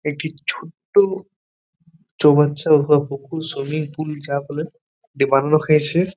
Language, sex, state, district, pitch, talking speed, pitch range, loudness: Bengali, male, West Bengal, Paschim Medinipur, 155 Hz, 115 wpm, 145-165 Hz, -19 LUFS